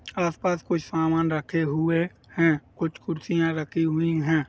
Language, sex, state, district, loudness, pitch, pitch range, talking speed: Hindi, male, Uttar Pradesh, Jalaun, -25 LUFS, 165 Hz, 155-165 Hz, 145 wpm